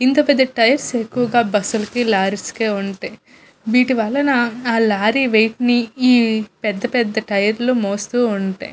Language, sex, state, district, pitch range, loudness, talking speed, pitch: Telugu, female, Andhra Pradesh, Visakhapatnam, 215-245 Hz, -17 LUFS, 150 wpm, 230 Hz